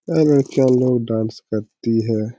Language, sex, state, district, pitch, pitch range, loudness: Hindi, male, Bihar, Supaul, 115 Hz, 110-135 Hz, -18 LUFS